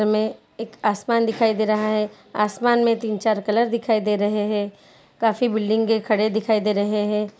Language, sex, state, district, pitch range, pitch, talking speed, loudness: Hindi, female, Bihar, Jahanabad, 210-225 Hz, 215 Hz, 195 wpm, -21 LUFS